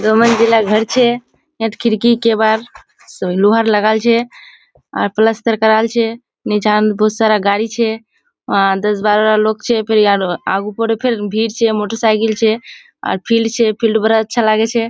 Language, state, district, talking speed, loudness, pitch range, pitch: Surjapuri, Bihar, Kishanganj, 165 wpm, -14 LUFS, 215-230 Hz, 220 Hz